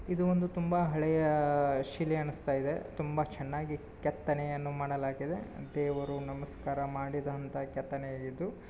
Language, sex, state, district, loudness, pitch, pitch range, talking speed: Kannada, male, Karnataka, Bijapur, -34 LUFS, 145 Hz, 140-155 Hz, 115 wpm